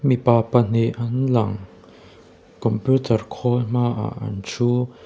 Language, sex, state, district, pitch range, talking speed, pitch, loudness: Mizo, male, Mizoram, Aizawl, 110-125 Hz, 120 wpm, 120 Hz, -21 LUFS